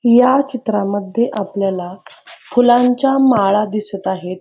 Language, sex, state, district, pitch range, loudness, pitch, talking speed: Marathi, female, Maharashtra, Pune, 195-245 Hz, -15 LUFS, 210 Hz, 110 wpm